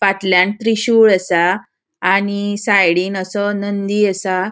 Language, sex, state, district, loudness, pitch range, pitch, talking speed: Konkani, female, Goa, North and South Goa, -15 LUFS, 190-210 Hz, 200 Hz, 105 wpm